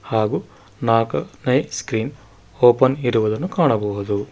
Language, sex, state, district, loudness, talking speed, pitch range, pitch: Kannada, male, Karnataka, Bangalore, -20 LUFS, 95 wpm, 105-125 Hz, 110 Hz